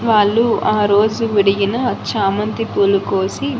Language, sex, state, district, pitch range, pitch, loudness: Telugu, female, Andhra Pradesh, Annamaya, 200-225 Hz, 210 Hz, -16 LUFS